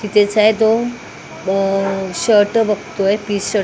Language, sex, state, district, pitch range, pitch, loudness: Marathi, female, Maharashtra, Mumbai Suburban, 195-215 Hz, 205 Hz, -16 LUFS